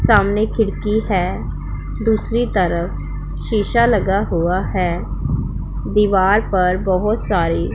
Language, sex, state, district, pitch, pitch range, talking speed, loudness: Hindi, female, Punjab, Pathankot, 195 Hz, 180-215 Hz, 100 wpm, -18 LUFS